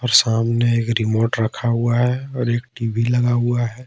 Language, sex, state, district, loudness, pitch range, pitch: Hindi, male, Jharkhand, Ranchi, -19 LUFS, 115-120 Hz, 120 Hz